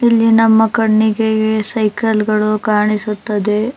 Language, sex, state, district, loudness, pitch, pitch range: Kannada, female, Karnataka, Bangalore, -14 LUFS, 220 Hz, 215-225 Hz